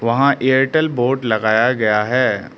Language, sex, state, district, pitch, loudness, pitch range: Hindi, male, Arunachal Pradesh, Lower Dibang Valley, 125 Hz, -16 LUFS, 110-135 Hz